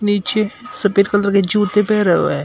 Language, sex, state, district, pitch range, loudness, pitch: Hindi, female, Uttar Pradesh, Shamli, 200-210 Hz, -16 LUFS, 205 Hz